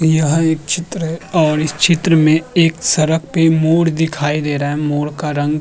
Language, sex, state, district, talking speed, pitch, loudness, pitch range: Hindi, male, Uttar Pradesh, Muzaffarnagar, 215 wpm, 160 Hz, -15 LUFS, 150-165 Hz